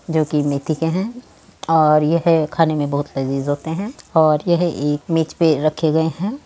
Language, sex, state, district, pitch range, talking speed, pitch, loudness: Hindi, female, Uttar Pradesh, Muzaffarnagar, 150-165 Hz, 195 wpm, 160 Hz, -18 LUFS